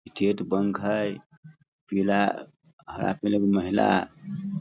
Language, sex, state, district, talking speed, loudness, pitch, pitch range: Hindi, male, Bihar, Sitamarhi, 115 wpm, -26 LUFS, 105 Hz, 100-160 Hz